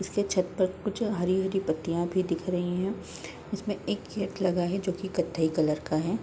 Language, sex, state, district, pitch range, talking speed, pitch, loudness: Hindi, female, Bihar, Gopalganj, 175-195 Hz, 200 wpm, 185 Hz, -29 LUFS